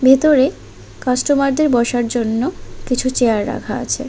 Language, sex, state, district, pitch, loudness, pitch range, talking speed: Bengali, female, Tripura, West Tripura, 255 Hz, -17 LUFS, 240-275 Hz, 130 wpm